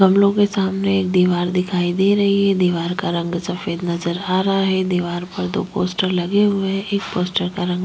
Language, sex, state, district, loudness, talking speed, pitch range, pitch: Hindi, female, Chhattisgarh, Korba, -19 LUFS, 215 wpm, 180-195 Hz, 185 Hz